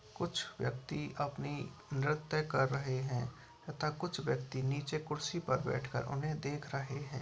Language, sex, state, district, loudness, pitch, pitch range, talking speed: Hindi, male, Uttar Pradesh, Etah, -38 LUFS, 140 Hz, 135-155 Hz, 150 wpm